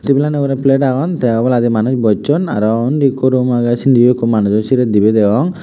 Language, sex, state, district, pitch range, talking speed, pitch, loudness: Chakma, male, Tripura, West Tripura, 115-140 Hz, 200 wpm, 125 Hz, -13 LUFS